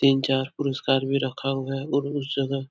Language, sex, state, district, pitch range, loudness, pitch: Hindi, male, Uttar Pradesh, Etah, 135-140 Hz, -25 LUFS, 135 Hz